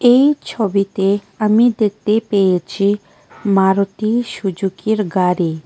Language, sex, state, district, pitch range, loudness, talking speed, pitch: Bengali, female, Tripura, West Tripura, 195-220 Hz, -16 LUFS, 95 wpm, 200 Hz